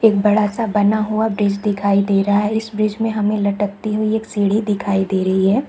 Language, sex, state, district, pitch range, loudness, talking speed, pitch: Hindi, female, Chhattisgarh, Raigarh, 200-215 Hz, -18 LUFS, 230 wpm, 210 Hz